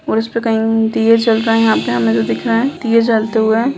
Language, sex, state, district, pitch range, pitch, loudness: Hindi, female, Bihar, Begusarai, 220-230 Hz, 225 Hz, -14 LUFS